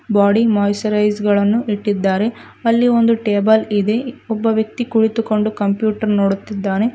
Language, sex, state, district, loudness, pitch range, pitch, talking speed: Kannada, female, Karnataka, Koppal, -17 LUFS, 205-225 Hz, 215 Hz, 110 wpm